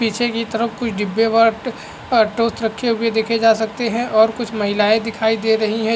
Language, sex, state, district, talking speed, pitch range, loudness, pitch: Hindi, male, Bihar, Araria, 210 wpm, 220-230 Hz, -18 LUFS, 225 Hz